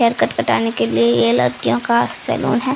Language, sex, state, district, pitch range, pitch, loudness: Hindi, female, Bihar, Samastipur, 115-125 Hz, 115 Hz, -17 LUFS